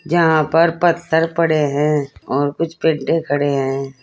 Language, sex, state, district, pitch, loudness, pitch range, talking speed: Hindi, female, Uttar Pradesh, Saharanpur, 155 Hz, -17 LUFS, 145-165 Hz, 150 wpm